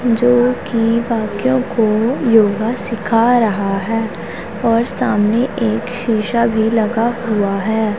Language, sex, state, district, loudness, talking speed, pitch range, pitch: Hindi, female, Punjab, Pathankot, -16 LUFS, 115 wpm, 215-240 Hz, 230 Hz